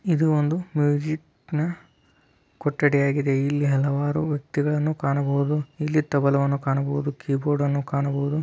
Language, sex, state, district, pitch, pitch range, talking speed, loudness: Kannada, male, Karnataka, Belgaum, 145 Hz, 140-150 Hz, 120 wpm, -24 LUFS